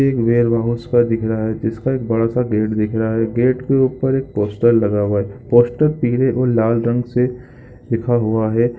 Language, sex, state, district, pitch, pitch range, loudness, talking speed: Hindi, male, Chhattisgarh, Bilaspur, 120 Hz, 110-125 Hz, -17 LUFS, 225 wpm